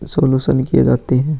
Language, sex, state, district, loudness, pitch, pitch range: Hindi, male, Bihar, Vaishali, -15 LUFS, 130 Hz, 125-150 Hz